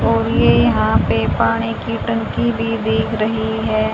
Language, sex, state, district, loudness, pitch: Hindi, female, Haryana, Rohtak, -17 LUFS, 215 Hz